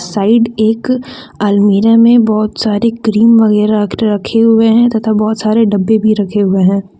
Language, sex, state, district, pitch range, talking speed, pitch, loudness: Hindi, female, Jharkhand, Deoghar, 210-225 Hz, 165 wpm, 215 Hz, -11 LUFS